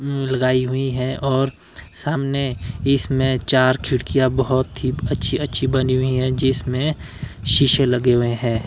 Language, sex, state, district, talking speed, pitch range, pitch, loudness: Hindi, male, Himachal Pradesh, Shimla, 145 wpm, 125-135 Hz, 130 Hz, -20 LUFS